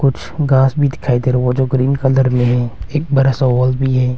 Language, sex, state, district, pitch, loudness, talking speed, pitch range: Hindi, male, Arunachal Pradesh, Longding, 130 Hz, -15 LUFS, 245 wpm, 125-135 Hz